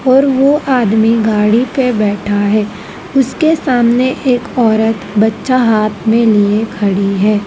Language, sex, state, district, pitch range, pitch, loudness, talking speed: Hindi, female, Madhya Pradesh, Dhar, 210-255 Hz, 225 Hz, -12 LUFS, 135 wpm